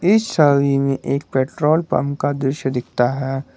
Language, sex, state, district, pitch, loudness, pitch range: Hindi, male, Jharkhand, Garhwa, 140 Hz, -19 LUFS, 135-145 Hz